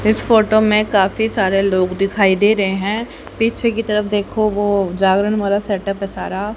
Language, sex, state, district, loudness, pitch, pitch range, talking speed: Hindi, female, Haryana, Charkhi Dadri, -16 LUFS, 205 Hz, 195-215 Hz, 175 wpm